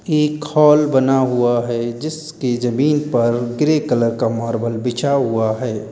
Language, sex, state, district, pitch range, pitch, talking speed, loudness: Hindi, male, Uttar Pradesh, Lalitpur, 115-150 Hz, 125 Hz, 150 wpm, -17 LUFS